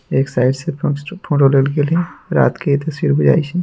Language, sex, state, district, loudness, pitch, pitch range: Hindi, male, Bihar, Muzaffarpur, -16 LUFS, 145 Hz, 135-165 Hz